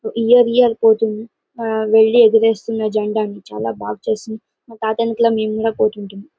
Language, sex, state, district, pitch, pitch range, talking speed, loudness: Telugu, female, Karnataka, Bellary, 220 Hz, 215-230 Hz, 160 wpm, -16 LUFS